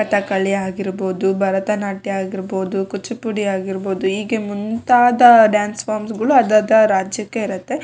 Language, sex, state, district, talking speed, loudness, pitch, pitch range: Kannada, female, Karnataka, Shimoga, 105 wpm, -17 LUFS, 205 Hz, 195-220 Hz